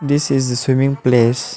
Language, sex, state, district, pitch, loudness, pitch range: English, male, Arunachal Pradesh, Lower Dibang Valley, 130 Hz, -16 LUFS, 125-140 Hz